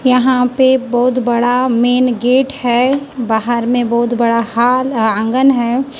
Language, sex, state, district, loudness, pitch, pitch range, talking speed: Hindi, female, Chhattisgarh, Raipur, -13 LUFS, 245 Hz, 235-255 Hz, 130 wpm